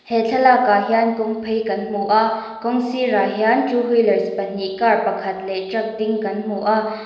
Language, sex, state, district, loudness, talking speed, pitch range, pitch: Mizo, female, Mizoram, Aizawl, -19 LUFS, 195 wpm, 205-230 Hz, 220 Hz